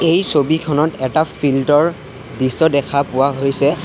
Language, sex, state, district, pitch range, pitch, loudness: Assamese, male, Assam, Sonitpur, 135-160 Hz, 145 Hz, -16 LUFS